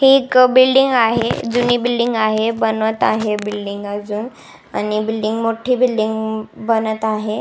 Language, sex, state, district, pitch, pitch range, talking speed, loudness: Marathi, female, Maharashtra, Nagpur, 220 Hz, 215-245 Hz, 140 wpm, -17 LUFS